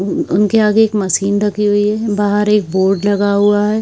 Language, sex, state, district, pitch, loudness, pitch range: Hindi, female, Bihar, Kishanganj, 205 Hz, -14 LUFS, 200-210 Hz